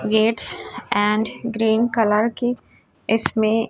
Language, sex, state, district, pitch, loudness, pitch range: Hindi, male, Chhattisgarh, Raipur, 225 Hz, -20 LUFS, 215-235 Hz